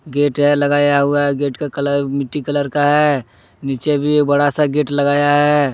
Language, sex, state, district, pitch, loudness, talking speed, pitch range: Hindi, male, Jharkhand, Deoghar, 145 Hz, -16 LUFS, 190 wpm, 140-145 Hz